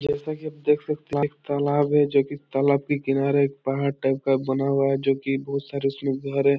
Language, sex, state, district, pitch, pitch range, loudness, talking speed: Hindi, male, Bihar, Supaul, 140 Hz, 135-145 Hz, -24 LUFS, 265 wpm